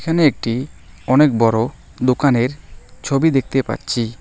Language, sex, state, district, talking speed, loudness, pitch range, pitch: Bengali, male, West Bengal, Alipurduar, 100 wpm, -17 LUFS, 115-140 Hz, 125 Hz